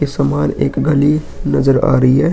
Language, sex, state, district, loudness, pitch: Hindi, male, Uttar Pradesh, Hamirpur, -14 LUFS, 135 Hz